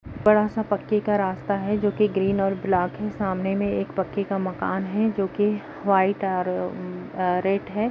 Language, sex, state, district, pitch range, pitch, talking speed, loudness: Hindi, female, Uttar Pradesh, Jyotiba Phule Nagar, 185-205 Hz, 195 Hz, 180 wpm, -24 LUFS